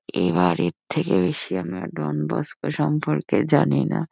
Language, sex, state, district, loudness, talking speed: Bengali, female, West Bengal, Kolkata, -23 LUFS, 145 wpm